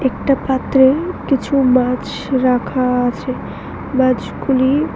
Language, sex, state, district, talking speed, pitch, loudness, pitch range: Bengali, female, Tripura, West Tripura, 85 wpm, 260 Hz, -16 LUFS, 255-270 Hz